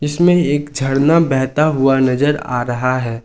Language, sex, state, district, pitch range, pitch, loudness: Hindi, male, Jharkhand, Ranchi, 130-150 Hz, 135 Hz, -15 LUFS